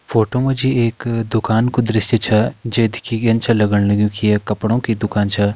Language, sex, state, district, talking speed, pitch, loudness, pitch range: Hindi, male, Uttarakhand, Tehri Garhwal, 205 wpm, 115 Hz, -17 LUFS, 105-115 Hz